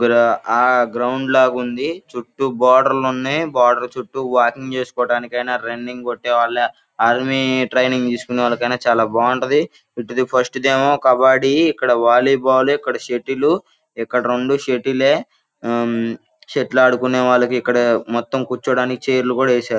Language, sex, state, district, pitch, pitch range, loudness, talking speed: Telugu, male, Andhra Pradesh, Guntur, 125 Hz, 120-130 Hz, -17 LUFS, 110 wpm